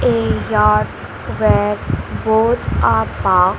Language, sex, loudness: English, female, -16 LUFS